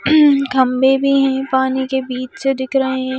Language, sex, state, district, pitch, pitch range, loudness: Hindi, female, Madhya Pradesh, Bhopal, 265 Hz, 260-270 Hz, -16 LUFS